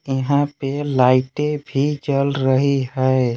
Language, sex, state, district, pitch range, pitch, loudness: Hindi, male, Jharkhand, Palamu, 130-145 Hz, 135 Hz, -19 LUFS